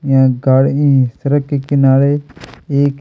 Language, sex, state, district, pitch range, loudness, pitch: Hindi, male, Chhattisgarh, Kabirdham, 135-140 Hz, -13 LUFS, 140 Hz